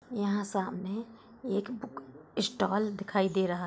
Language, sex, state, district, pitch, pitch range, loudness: Hindi, female, Uttar Pradesh, Hamirpur, 205 Hz, 195-225 Hz, -32 LUFS